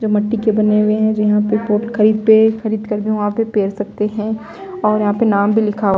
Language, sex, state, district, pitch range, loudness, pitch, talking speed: Hindi, female, Delhi, New Delhi, 210-220 Hz, -16 LUFS, 215 Hz, 270 wpm